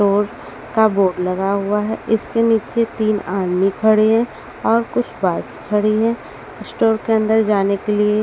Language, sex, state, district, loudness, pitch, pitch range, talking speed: Hindi, female, Haryana, Rohtak, -18 LUFS, 215 Hz, 200-225 Hz, 170 wpm